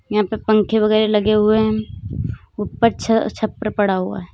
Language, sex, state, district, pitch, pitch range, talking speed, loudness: Hindi, female, Uttar Pradesh, Lalitpur, 215 Hz, 210-220 Hz, 165 wpm, -18 LUFS